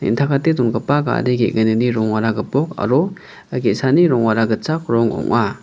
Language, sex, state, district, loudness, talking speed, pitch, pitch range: Garo, male, Meghalaya, West Garo Hills, -17 LUFS, 115 wpm, 120 Hz, 110-145 Hz